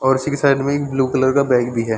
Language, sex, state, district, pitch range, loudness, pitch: Hindi, male, Chhattisgarh, Bilaspur, 130-140 Hz, -17 LUFS, 135 Hz